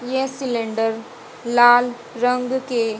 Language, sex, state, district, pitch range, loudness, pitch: Hindi, female, Haryana, Jhajjar, 230-250 Hz, -19 LUFS, 240 Hz